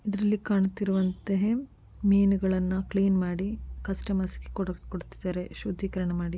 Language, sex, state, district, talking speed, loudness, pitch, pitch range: Kannada, female, Karnataka, Mysore, 85 wpm, -28 LUFS, 195 Hz, 185-200 Hz